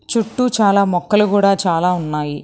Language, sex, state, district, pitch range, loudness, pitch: Telugu, female, Telangana, Hyderabad, 175-210 Hz, -16 LUFS, 200 Hz